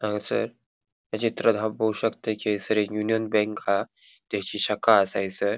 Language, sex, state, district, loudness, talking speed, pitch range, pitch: Konkani, male, Goa, North and South Goa, -25 LUFS, 170 wpm, 105-110 Hz, 110 Hz